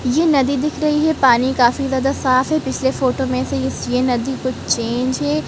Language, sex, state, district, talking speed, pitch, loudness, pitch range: Hindi, female, Uttarakhand, Tehri Garhwal, 220 wpm, 265 Hz, -17 LUFS, 255-280 Hz